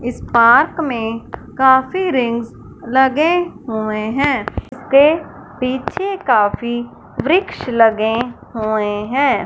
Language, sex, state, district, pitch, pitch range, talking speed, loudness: Hindi, male, Punjab, Fazilka, 250 Hz, 225-285 Hz, 100 wpm, -16 LUFS